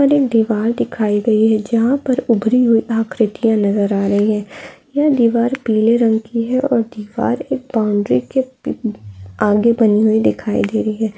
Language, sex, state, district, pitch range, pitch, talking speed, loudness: Hindi, female, Bihar, Araria, 210-235 Hz, 220 Hz, 195 wpm, -16 LUFS